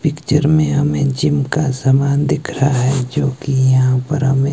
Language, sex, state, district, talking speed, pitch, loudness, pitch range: Hindi, male, Himachal Pradesh, Shimla, 185 wpm, 140 Hz, -15 LUFS, 135-150 Hz